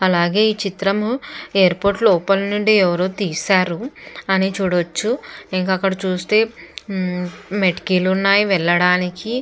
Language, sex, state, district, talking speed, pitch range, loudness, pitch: Telugu, female, Andhra Pradesh, Chittoor, 110 wpm, 180-205 Hz, -18 LUFS, 190 Hz